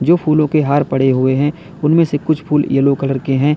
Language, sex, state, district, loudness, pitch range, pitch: Hindi, male, Uttar Pradesh, Lalitpur, -15 LUFS, 135-155 Hz, 145 Hz